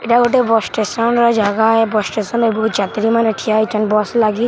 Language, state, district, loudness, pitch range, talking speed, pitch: Sambalpuri, Odisha, Sambalpur, -15 LUFS, 215-235 Hz, 240 wpm, 220 Hz